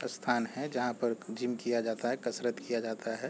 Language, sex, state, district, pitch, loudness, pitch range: Hindi, male, Chhattisgarh, Raigarh, 120 Hz, -34 LUFS, 115-125 Hz